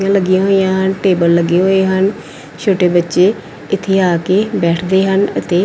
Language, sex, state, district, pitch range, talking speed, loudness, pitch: Punjabi, female, Punjab, Pathankot, 175-195 Hz, 170 wpm, -13 LUFS, 190 Hz